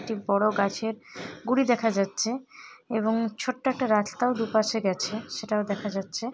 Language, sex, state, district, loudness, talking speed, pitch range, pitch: Bengali, female, West Bengal, Jalpaiguri, -27 LUFS, 130 wpm, 205-235 Hz, 220 Hz